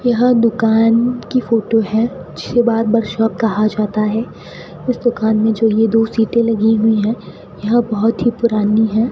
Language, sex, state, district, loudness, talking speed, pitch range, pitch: Hindi, female, Rajasthan, Bikaner, -15 LUFS, 170 wpm, 215-235 Hz, 225 Hz